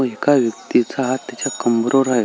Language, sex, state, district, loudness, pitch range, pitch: Marathi, male, Maharashtra, Solapur, -18 LUFS, 120-135 Hz, 130 Hz